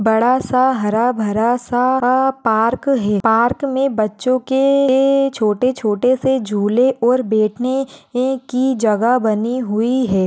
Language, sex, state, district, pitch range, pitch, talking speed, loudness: Hindi, female, Rajasthan, Churu, 220-260 Hz, 250 Hz, 130 wpm, -16 LUFS